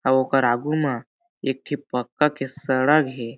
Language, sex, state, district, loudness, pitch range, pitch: Chhattisgarhi, male, Chhattisgarh, Jashpur, -22 LUFS, 130-150 Hz, 135 Hz